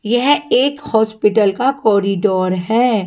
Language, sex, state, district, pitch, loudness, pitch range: Hindi, female, Punjab, Kapurthala, 220 Hz, -15 LUFS, 200-245 Hz